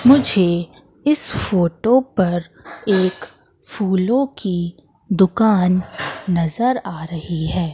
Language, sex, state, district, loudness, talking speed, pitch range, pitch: Hindi, female, Madhya Pradesh, Katni, -18 LUFS, 95 wpm, 170-220 Hz, 185 Hz